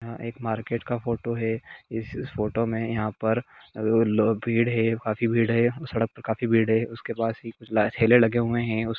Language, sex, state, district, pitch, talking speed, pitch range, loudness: Hindi, male, Jharkhand, Jamtara, 115 Hz, 155 wpm, 110-115 Hz, -25 LUFS